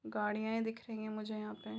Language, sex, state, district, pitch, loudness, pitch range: Hindi, female, Jharkhand, Jamtara, 215 Hz, -39 LUFS, 210-225 Hz